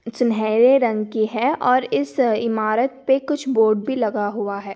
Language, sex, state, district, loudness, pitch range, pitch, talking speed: Hindi, female, Rajasthan, Nagaur, -19 LUFS, 215-255 Hz, 230 Hz, 175 wpm